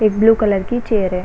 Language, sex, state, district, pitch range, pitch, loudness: Hindi, female, Bihar, Saran, 195-225 Hz, 215 Hz, -16 LUFS